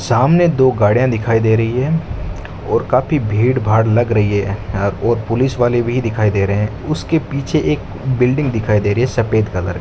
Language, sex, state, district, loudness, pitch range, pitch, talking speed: Hindi, male, Rajasthan, Bikaner, -16 LUFS, 105-130 Hz, 115 Hz, 200 wpm